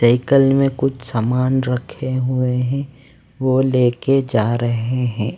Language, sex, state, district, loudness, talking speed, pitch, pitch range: Hindi, male, Delhi, New Delhi, -18 LUFS, 135 wpm, 130 Hz, 120-135 Hz